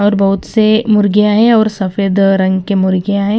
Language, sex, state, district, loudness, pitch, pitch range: Hindi, female, Punjab, Kapurthala, -12 LUFS, 200 Hz, 195-215 Hz